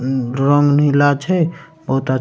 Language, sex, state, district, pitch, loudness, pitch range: Maithili, male, Bihar, Supaul, 145 Hz, -16 LUFS, 135-160 Hz